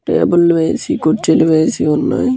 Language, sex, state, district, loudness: Telugu, male, Andhra Pradesh, Guntur, -13 LUFS